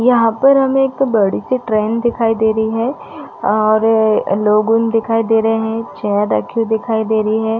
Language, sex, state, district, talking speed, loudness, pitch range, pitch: Hindi, female, Chhattisgarh, Raigarh, 180 wpm, -15 LUFS, 220-230 Hz, 225 Hz